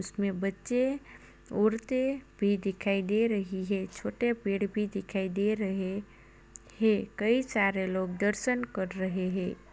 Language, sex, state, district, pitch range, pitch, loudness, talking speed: Hindi, male, Uttar Pradesh, Muzaffarnagar, 190-220 Hz, 200 Hz, -30 LUFS, 130 wpm